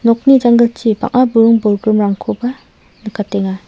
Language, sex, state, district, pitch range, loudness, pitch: Garo, female, Meghalaya, South Garo Hills, 210-240 Hz, -13 LUFS, 230 Hz